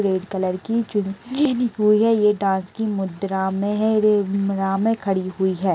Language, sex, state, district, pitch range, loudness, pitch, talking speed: Hindi, female, Uttar Pradesh, Deoria, 190-220 Hz, -21 LUFS, 200 Hz, 135 wpm